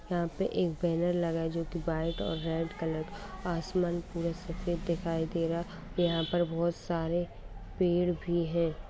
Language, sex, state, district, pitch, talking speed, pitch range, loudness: Hindi, female, Bihar, Sitamarhi, 170 Hz, 195 wpm, 165-175 Hz, -32 LUFS